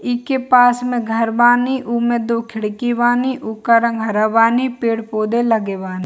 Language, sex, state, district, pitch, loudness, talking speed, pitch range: Hindi, female, Bihar, Kishanganj, 235 Hz, -16 LUFS, 160 wpm, 225-245 Hz